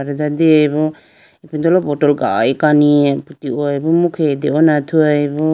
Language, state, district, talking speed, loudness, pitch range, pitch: Idu Mishmi, Arunachal Pradesh, Lower Dibang Valley, 150 wpm, -14 LUFS, 145-155 Hz, 150 Hz